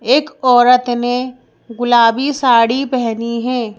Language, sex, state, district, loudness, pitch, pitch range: Hindi, female, Madhya Pradesh, Bhopal, -14 LUFS, 245 Hz, 235-255 Hz